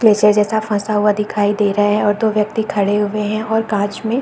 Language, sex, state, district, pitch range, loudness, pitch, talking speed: Hindi, female, Bihar, Saharsa, 205-215 Hz, -16 LUFS, 210 Hz, 255 wpm